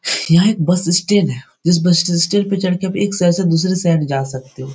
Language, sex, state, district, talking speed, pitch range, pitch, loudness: Hindi, male, Bihar, Supaul, 250 wpm, 165-185 Hz, 175 Hz, -15 LUFS